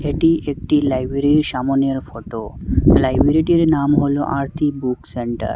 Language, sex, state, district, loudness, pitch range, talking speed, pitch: Bengali, male, Assam, Hailakandi, -18 LUFS, 130-150 Hz, 130 wpm, 140 Hz